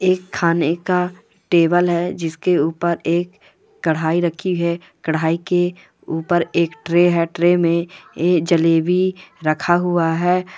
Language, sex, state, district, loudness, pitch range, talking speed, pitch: Hindi, male, Goa, North and South Goa, -18 LUFS, 165-180 Hz, 140 wpm, 170 Hz